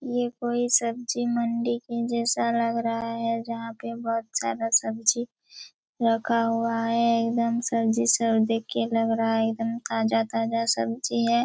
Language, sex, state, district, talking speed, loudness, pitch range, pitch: Hindi, female, Chhattisgarh, Raigarh, 155 wpm, -25 LUFS, 225-235 Hz, 230 Hz